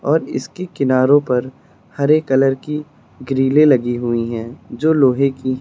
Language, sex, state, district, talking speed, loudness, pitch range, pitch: Hindi, male, Uttar Pradesh, Lucknow, 160 wpm, -17 LUFS, 125-145 Hz, 135 Hz